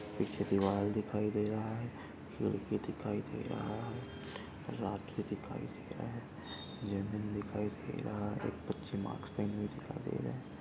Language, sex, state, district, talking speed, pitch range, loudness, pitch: Hindi, male, Chhattisgarh, Bastar, 155 wpm, 100-105 Hz, -39 LUFS, 105 Hz